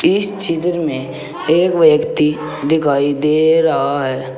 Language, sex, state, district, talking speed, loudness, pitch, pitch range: Hindi, male, Uttar Pradesh, Saharanpur, 125 wpm, -15 LUFS, 155 Hz, 145-170 Hz